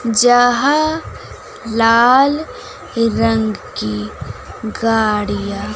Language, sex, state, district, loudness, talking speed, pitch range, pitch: Hindi, female, Bihar, West Champaran, -15 LUFS, 50 wpm, 215-245 Hz, 225 Hz